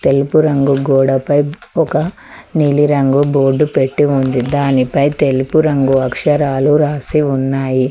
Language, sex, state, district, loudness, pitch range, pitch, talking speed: Telugu, female, Telangana, Mahabubabad, -14 LUFS, 135-150 Hz, 140 Hz, 105 wpm